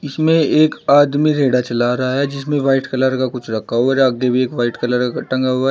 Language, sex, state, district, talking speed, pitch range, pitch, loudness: Hindi, male, Uttar Pradesh, Shamli, 240 wpm, 125-140 Hz, 130 Hz, -16 LUFS